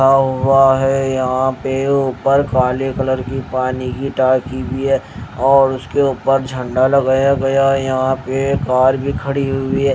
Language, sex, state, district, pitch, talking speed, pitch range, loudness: Hindi, male, Haryana, Rohtak, 135 Hz, 165 wpm, 130-135 Hz, -16 LUFS